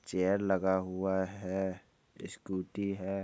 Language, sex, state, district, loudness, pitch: Hindi, male, Bihar, Bhagalpur, -34 LUFS, 95 Hz